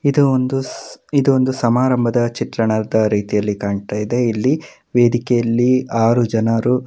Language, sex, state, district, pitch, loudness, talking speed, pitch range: Kannada, male, Karnataka, Mysore, 120 Hz, -17 LUFS, 120 wpm, 110-130 Hz